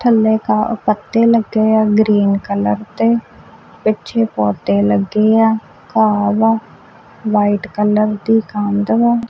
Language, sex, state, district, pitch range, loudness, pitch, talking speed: Punjabi, female, Punjab, Kapurthala, 205-225 Hz, -15 LUFS, 215 Hz, 130 wpm